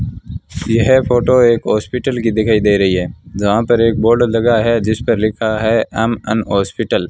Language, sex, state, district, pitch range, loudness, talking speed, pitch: Hindi, male, Rajasthan, Bikaner, 105-115 Hz, -14 LUFS, 185 wpm, 115 Hz